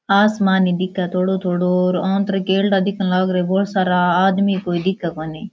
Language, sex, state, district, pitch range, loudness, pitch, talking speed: Rajasthani, female, Rajasthan, Churu, 180-195 Hz, -18 LUFS, 190 Hz, 195 wpm